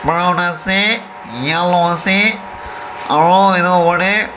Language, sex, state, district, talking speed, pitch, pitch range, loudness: Nagamese, male, Nagaland, Dimapur, 110 wpm, 175 Hz, 135-190 Hz, -13 LUFS